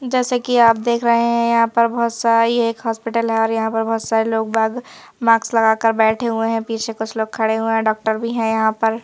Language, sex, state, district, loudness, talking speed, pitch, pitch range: Hindi, female, Madhya Pradesh, Bhopal, -17 LUFS, 245 wpm, 225 Hz, 225-235 Hz